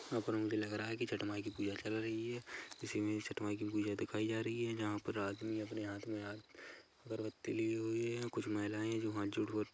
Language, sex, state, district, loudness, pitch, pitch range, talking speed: Hindi, male, Chhattisgarh, Kabirdham, -41 LUFS, 110 Hz, 105-110 Hz, 260 wpm